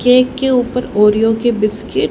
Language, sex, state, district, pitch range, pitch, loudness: Hindi, female, Haryana, Charkhi Dadri, 215-250 Hz, 240 Hz, -14 LUFS